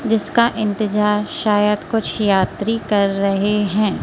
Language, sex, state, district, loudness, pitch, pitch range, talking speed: Hindi, female, Madhya Pradesh, Katni, -18 LUFS, 210 Hz, 205-220 Hz, 120 wpm